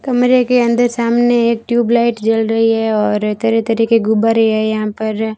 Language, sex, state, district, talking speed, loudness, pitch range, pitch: Hindi, female, Rajasthan, Barmer, 190 wpm, -14 LUFS, 220-235 Hz, 225 Hz